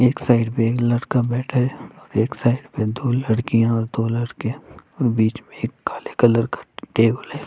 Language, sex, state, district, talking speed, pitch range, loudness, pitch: Hindi, male, Punjab, Fazilka, 195 wpm, 115-125 Hz, -21 LUFS, 120 Hz